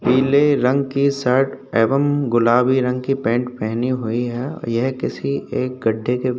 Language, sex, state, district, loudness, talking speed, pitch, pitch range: Hindi, male, Uttar Pradesh, Hamirpur, -19 LUFS, 170 wpm, 125 Hz, 120-135 Hz